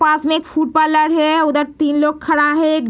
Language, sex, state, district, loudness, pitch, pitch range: Hindi, female, Bihar, Sitamarhi, -15 LUFS, 310 Hz, 300-315 Hz